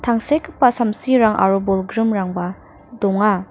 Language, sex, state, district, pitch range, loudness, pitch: Garo, female, Meghalaya, North Garo Hills, 195-240 Hz, -18 LUFS, 215 Hz